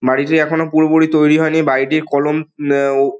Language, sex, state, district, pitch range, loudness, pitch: Bengali, male, West Bengal, Dakshin Dinajpur, 140-160 Hz, -14 LUFS, 150 Hz